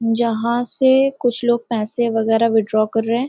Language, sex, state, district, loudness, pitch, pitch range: Hindi, female, Uttarakhand, Uttarkashi, -17 LUFS, 235 Hz, 225-245 Hz